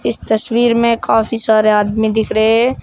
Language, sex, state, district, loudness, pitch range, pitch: Hindi, male, Uttar Pradesh, Shamli, -13 LUFS, 215-230 Hz, 220 Hz